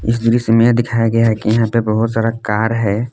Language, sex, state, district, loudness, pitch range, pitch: Hindi, male, Jharkhand, Palamu, -15 LUFS, 110-115 Hz, 115 Hz